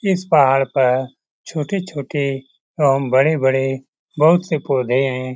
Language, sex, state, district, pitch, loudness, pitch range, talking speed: Hindi, male, Bihar, Lakhisarai, 135 Hz, -18 LUFS, 130-155 Hz, 110 wpm